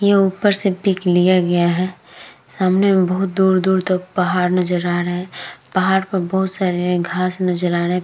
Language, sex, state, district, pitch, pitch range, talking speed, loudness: Hindi, female, Uttar Pradesh, Etah, 185 Hz, 180-190 Hz, 180 wpm, -17 LUFS